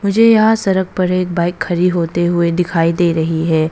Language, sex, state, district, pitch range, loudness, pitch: Hindi, female, Arunachal Pradesh, Papum Pare, 165-185 Hz, -15 LUFS, 175 Hz